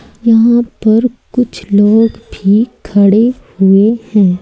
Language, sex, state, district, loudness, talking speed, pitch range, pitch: Hindi, female, Madhya Pradesh, Umaria, -11 LUFS, 110 wpm, 200-235 Hz, 220 Hz